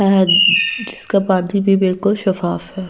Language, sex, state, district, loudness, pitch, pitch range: Hindi, female, Delhi, New Delhi, -15 LUFS, 195 Hz, 185-200 Hz